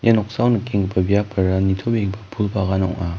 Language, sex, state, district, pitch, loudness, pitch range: Garo, male, Meghalaya, West Garo Hills, 100 Hz, -20 LUFS, 95-105 Hz